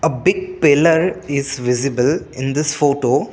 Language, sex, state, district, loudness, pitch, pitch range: English, male, Assam, Kamrup Metropolitan, -17 LUFS, 145 Hz, 135-160 Hz